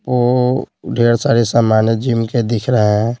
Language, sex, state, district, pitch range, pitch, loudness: Hindi, male, Bihar, Patna, 115-125 Hz, 115 Hz, -15 LUFS